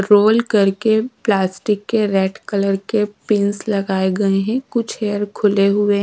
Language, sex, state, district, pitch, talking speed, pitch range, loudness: Hindi, female, Odisha, Sambalpur, 205 Hz, 150 wpm, 195-215 Hz, -17 LUFS